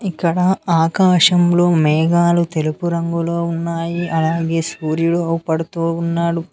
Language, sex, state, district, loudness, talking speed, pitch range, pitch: Telugu, male, Telangana, Mahabubabad, -17 LUFS, 90 wpm, 165-175 Hz, 170 Hz